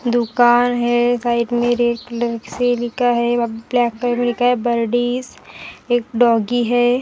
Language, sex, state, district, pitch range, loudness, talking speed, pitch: Hindi, female, Maharashtra, Gondia, 235-245 Hz, -17 LUFS, 170 wpm, 240 Hz